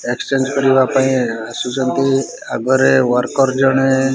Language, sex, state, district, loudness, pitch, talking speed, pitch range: Odia, male, Odisha, Malkangiri, -15 LUFS, 130 Hz, 115 wpm, 125-135 Hz